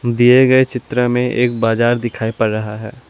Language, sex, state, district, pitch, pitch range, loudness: Hindi, male, Assam, Sonitpur, 120 Hz, 115-125 Hz, -15 LUFS